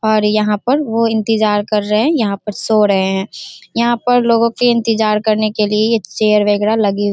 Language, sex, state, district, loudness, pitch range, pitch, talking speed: Hindi, female, Bihar, Darbhanga, -14 LUFS, 210-230 Hz, 215 Hz, 225 wpm